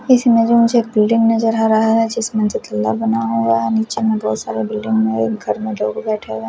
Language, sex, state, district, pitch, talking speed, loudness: Hindi, female, Chhattisgarh, Raipur, 115 Hz, 240 wpm, -16 LUFS